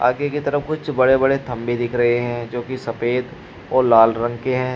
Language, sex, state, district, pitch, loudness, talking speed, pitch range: Hindi, male, Uttar Pradesh, Shamli, 125 Hz, -19 LUFS, 225 wpm, 120-135 Hz